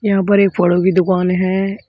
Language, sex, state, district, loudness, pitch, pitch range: Hindi, male, Uttar Pradesh, Shamli, -14 LUFS, 190 Hz, 185-200 Hz